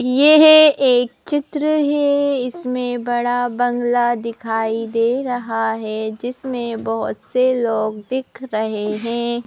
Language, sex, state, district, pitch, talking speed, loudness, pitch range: Hindi, female, Madhya Pradesh, Bhopal, 245 Hz, 115 wpm, -18 LUFS, 225-260 Hz